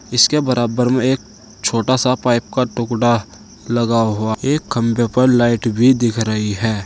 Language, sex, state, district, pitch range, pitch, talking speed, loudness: Hindi, male, Uttar Pradesh, Saharanpur, 115-125 Hz, 120 Hz, 165 wpm, -16 LUFS